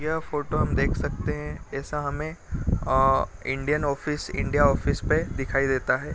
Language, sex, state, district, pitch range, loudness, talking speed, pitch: Hindi, male, Bihar, Gopalganj, 135-150 Hz, -26 LUFS, 165 wpm, 140 Hz